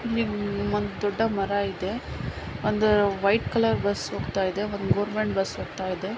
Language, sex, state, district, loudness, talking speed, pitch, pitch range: Kannada, female, Karnataka, Mysore, -26 LUFS, 135 wpm, 205 Hz, 195-215 Hz